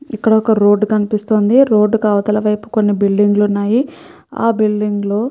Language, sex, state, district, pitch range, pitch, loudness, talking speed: Telugu, female, Andhra Pradesh, Krishna, 205-225 Hz, 215 Hz, -14 LUFS, 180 wpm